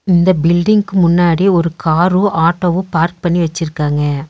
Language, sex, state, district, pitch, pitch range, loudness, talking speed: Tamil, female, Tamil Nadu, Nilgiris, 175 Hz, 165-185 Hz, -13 LUFS, 125 wpm